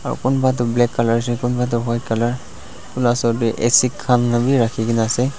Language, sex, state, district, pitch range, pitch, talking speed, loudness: Nagamese, male, Nagaland, Dimapur, 115-125 Hz, 120 Hz, 180 wpm, -18 LUFS